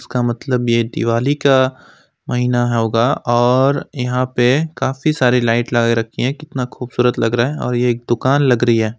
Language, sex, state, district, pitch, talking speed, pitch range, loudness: Hindi, male, West Bengal, Alipurduar, 125 Hz, 180 wpm, 120-130 Hz, -16 LUFS